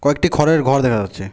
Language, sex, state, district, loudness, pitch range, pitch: Bengali, male, West Bengal, Alipurduar, -16 LUFS, 110-150 Hz, 140 Hz